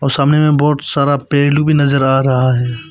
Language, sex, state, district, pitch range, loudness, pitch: Hindi, male, Arunachal Pradesh, Papum Pare, 135-150 Hz, -13 LUFS, 140 Hz